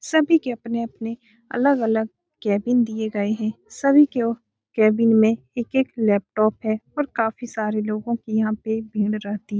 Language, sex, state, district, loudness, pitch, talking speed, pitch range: Hindi, female, Bihar, Saran, -22 LUFS, 225 Hz, 160 wpm, 215-240 Hz